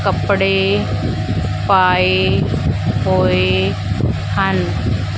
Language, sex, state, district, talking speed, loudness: Punjabi, female, Punjab, Fazilka, 45 wpm, -16 LUFS